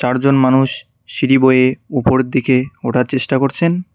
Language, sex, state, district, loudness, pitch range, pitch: Bengali, male, West Bengal, Cooch Behar, -15 LUFS, 130-135 Hz, 130 Hz